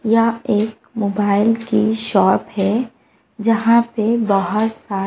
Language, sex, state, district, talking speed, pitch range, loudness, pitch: Hindi, female, Bihar, West Champaran, 120 wpm, 205-230 Hz, -17 LUFS, 220 Hz